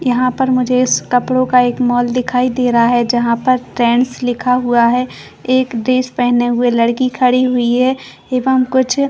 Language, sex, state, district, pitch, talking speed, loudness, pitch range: Hindi, female, Chhattisgarh, Bastar, 250 Hz, 170 wpm, -14 LUFS, 245-255 Hz